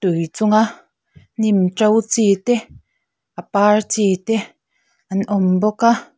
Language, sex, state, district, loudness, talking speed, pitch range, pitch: Mizo, female, Mizoram, Aizawl, -17 LUFS, 115 wpm, 195-220 Hz, 215 Hz